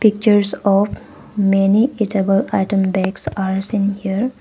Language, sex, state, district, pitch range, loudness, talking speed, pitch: English, female, Arunachal Pradesh, Papum Pare, 195-210 Hz, -17 LUFS, 120 wpm, 200 Hz